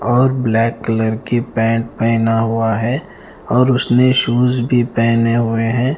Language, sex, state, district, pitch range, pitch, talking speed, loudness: Hindi, male, Punjab, Fazilka, 115-125 Hz, 115 Hz, 150 wpm, -15 LUFS